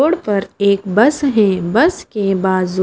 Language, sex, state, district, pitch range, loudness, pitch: Hindi, female, Himachal Pradesh, Shimla, 190-275 Hz, -15 LUFS, 200 Hz